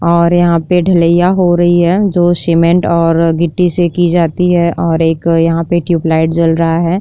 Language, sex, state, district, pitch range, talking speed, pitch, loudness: Hindi, female, Uttar Pradesh, Jyotiba Phule Nagar, 165-175 Hz, 195 wpm, 170 Hz, -11 LUFS